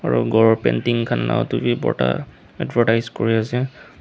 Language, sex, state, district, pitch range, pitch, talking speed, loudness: Nagamese, male, Nagaland, Dimapur, 115-120 Hz, 115 Hz, 150 wpm, -20 LUFS